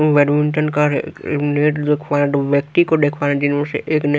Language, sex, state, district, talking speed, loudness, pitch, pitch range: Hindi, male, Haryana, Rohtak, 230 wpm, -17 LUFS, 145 Hz, 145-150 Hz